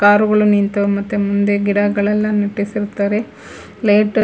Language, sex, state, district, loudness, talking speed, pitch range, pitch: Kannada, female, Karnataka, Bangalore, -16 LUFS, 125 wpm, 200-210 Hz, 205 Hz